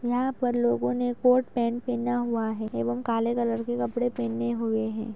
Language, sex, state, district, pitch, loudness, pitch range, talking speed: Hindi, female, Uttar Pradesh, Budaun, 235 Hz, -27 LUFS, 225-245 Hz, 210 wpm